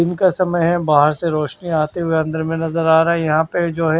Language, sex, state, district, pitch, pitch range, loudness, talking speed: Hindi, male, Haryana, Charkhi Dadri, 165 Hz, 160-170 Hz, -17 LUFS, 285 wpm